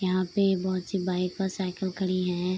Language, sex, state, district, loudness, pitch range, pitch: Hindi, female, Bihar, Saharsa, -28 LUFS, 180-190 Hz, 185 Hz